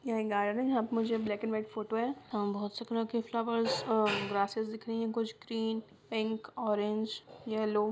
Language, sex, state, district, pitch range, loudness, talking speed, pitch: Hindi, female, Bihar, Sitamarhi, 210-230 Hz, -34 LUFS, 180 wpm, 220 Hz